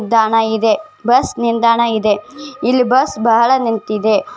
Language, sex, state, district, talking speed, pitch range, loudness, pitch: Kannada, female, Karnataka, Bellary, 135 wpm, 220-255 Hz, -14 LUFS, 230 Hz